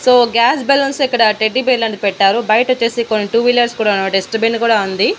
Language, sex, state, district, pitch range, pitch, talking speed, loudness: Telugu, female, Andhra Pradesh, Annamaya, 215-245 Hz, 230 Hz, 195 wpm, -14 LUFS